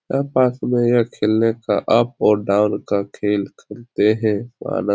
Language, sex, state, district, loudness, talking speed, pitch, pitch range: Hindi, male, Bihar, Supaul, -19 LUFS, 170 wpm, 110 Hz, 105-120 Hz